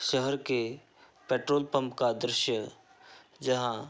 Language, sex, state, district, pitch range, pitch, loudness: Hindi, male, Uttar Pradesh, Hamirpur, 125-140 Hz, 130 Hz, -30 LUFS